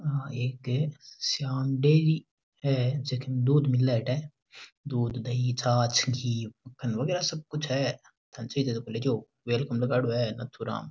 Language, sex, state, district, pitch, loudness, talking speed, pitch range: Rajasthani, male, Rajasthan, Nagaur, 125 Hz, -28 LUFS, 105 wpm, 120-140 Hz